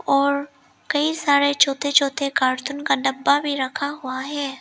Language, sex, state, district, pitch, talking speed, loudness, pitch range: Hindi, female, Arunachal Pradesh, Lower Dibang Valley, 280 Hz, 155 wpm, -21 LUFS, 270-285 Hz